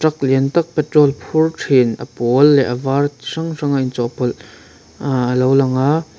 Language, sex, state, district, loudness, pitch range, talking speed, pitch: Mizo, male, Mizoram, Aizawl, -16 LUFS, 130-150 Hz, 215 wpm, 135 Hz